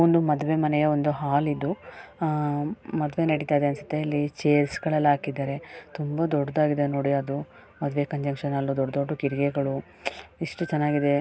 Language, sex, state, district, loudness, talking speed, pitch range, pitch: Kannada, male, Karnataka, Chamarajanagar, -26 LUFS, 150 wpm, 140-150 Hz, 145 Hz